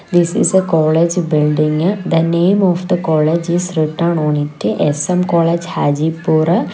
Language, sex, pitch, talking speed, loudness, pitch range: English, female, 165 Hz, 150 wpm, -15 LUFS, 155-175 Hz